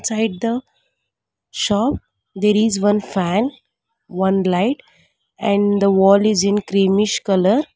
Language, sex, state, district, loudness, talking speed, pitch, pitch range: English, female, Karnataka, Bangalore, -17 LUFS, 125 wpm, 205 Hz, 195-225 Hz